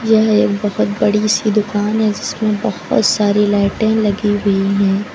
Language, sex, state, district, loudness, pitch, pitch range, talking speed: Hindi, female, Uttar Pradesh, Lucknow, -15 LUFS, 210 Hz, 205-215 Hz, 165 wpm